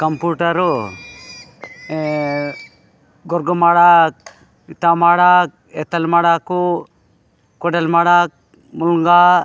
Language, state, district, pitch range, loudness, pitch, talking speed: Gondi, Chhattisgarh, Sukma, 165-175 Hz, -15 LUFS, 170 Hz, 65 wpm